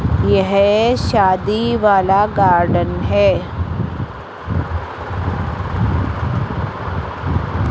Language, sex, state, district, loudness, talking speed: Hindi, female, Rajasthan, Jaipur, -17 LUFS, 40 wpm